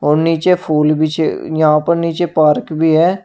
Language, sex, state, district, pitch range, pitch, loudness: Hindi, male, Uttar Pradesh, Shamli, 155-170 Hz, 160 Hz, -14 LUFS